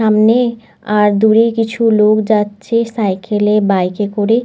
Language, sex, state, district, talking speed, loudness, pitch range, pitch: Bengali, female, West Bengal, North 24 Parganas, 135 wpm, -13 LUFS, 210-225 Hz, 215 Hz